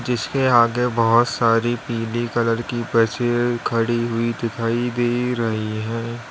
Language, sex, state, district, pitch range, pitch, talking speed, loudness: Hindi, male, Uttar Pradesh, Lalitpur, 115-120 Hz, 120 Hz, 135 wpm, -20 LUFS